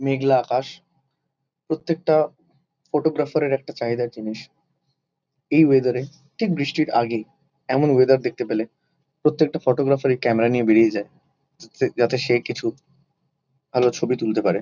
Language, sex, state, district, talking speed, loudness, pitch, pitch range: Bengali, male, West Bengal, Kolkata, 130 wpm, -21 LUFS, 140 Hz, 125-160 Hz